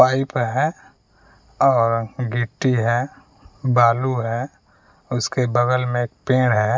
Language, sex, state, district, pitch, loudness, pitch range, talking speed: Hindi, male, Bihar, West Champaran, 120 Hz, -20 LUFS, 115-130 Hz, 115 wpm